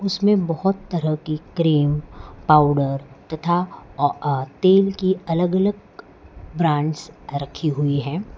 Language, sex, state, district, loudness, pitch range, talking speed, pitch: Hindi, male, Gujarat, Valsad, -21 LUFS, 145-185 Hz, 115 wpm, 155 Hz